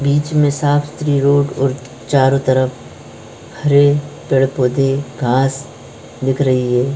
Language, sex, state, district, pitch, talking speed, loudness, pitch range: Hindi, male, Uttarakhand, Tehri Garhwal, 135 Hz, 110 wpm, -15 LUFS, 130-145 Hz